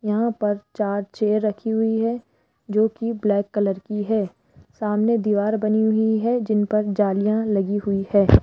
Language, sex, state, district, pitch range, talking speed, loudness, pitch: Hindi, female, Rajasthan, Jaipur, 205-220 Hz, 170 wpm, -22 LUFS, 210 Hz